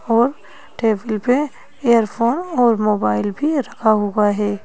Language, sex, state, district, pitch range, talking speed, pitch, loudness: Hindi, female, Madhya Pradesh, Bhopal, 210-250 Hz, 130 wpm, 230 Hz, -18 LUFS